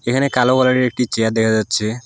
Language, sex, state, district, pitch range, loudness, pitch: Bengali, male, West Bengal, Alipurduar, 110-130 Hz, -16 LUFS, 125 Hz